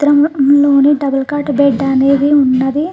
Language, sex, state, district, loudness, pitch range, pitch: Telugu, female, Telangana, Nalgonda, -12 LUFS, 275-290 Hz, 280 Hz